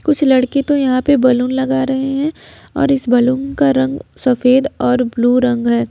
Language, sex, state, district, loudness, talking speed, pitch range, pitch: Hindi, female, Jharkhand, Ranchi, -15 LUFS, 195 wpm, 250-275 Hz, 260 Hz